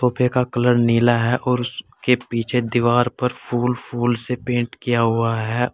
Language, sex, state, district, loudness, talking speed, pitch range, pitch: Hindi, male, Uttar Pradesh, Saharanpur, -20 LUFS, 180 wpm, 120-125 Hz, 120 Hz